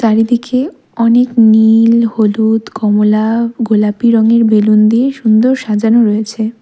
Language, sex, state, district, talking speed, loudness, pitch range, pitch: Bengali, female, West Bengal, Darjeeling, 110 wpm, -11 LUFS, 215-235 Hz, 225 Hz